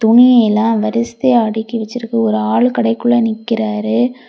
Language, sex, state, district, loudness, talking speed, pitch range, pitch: Tamil, female, Tamil Nadu, Kanyakumari, -14 LUFS, 110 wpm, 220-240 Hz, 230 Hz